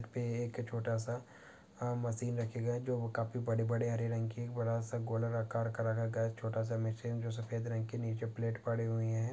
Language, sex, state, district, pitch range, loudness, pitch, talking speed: Hindi, male, Chhattisgarh, Bilaspur, 115-120 Hz, -37 LUFS, 115 Hz, 230 wpm